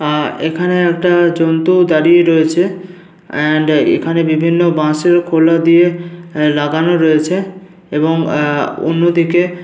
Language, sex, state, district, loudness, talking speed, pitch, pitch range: Bengali, male, West Bengal, Paschim Medinipur, -13 LUFS, 105 wpm, 165 Hz, 155-175 Hz